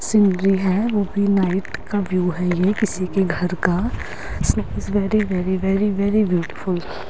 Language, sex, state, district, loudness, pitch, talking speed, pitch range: Hindi, female, Himachal Pradesh, Shimla, -20 LUFS, 190 Hz, 160 wpm, 180-205 Hz